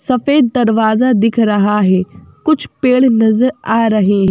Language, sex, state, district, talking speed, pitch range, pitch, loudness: Hindi, female, Madhya Pradesh, Bhopal, 140 wpm, 210-255 Hz, 225 Hz, -13 LUFS